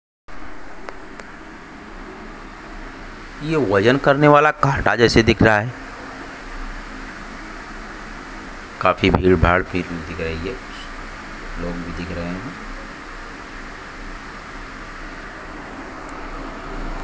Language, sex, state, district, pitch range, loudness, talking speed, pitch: Hindi, male, Maharashtra, Mumbai Suburban, 85-120 Hz, -18 LUFS, 65 wpm, 95 Hz